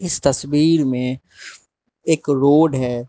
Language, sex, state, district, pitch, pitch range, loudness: Hindi, male, Manipur, Imphal West, 140 Hz, 130-160 Hz, -17 LUFS